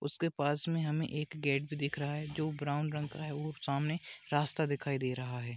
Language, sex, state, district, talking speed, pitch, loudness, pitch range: Hindi, female, Rajasthan, Nagaur, 235 wpm, 150 Hz, -35 LUFS, 140-155 Hz